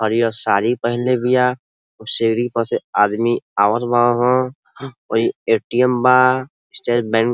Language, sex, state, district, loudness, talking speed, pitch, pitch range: Bhojpuri, male, Uttar Pradesh, Ghazipur, -17 LUFS, 140 wpm, 120 Hz, 115-125 Hz